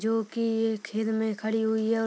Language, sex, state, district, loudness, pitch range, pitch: Hindi, female, Uttar Pradesh, Deoria, -28 LUFS, 220-225 Hz, 220 Hz